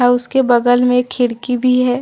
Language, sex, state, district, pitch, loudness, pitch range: Hindi, female, Jharkhand, Deoghar, 250 Hz, -14 LUFS, 245-250 Hz